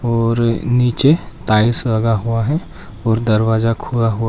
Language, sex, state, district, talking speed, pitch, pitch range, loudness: Hindi, male, Arunachal Pradesh, Papum Pare, 140 wpm, 115 Hz, 110-120 Hz, -16 LUFS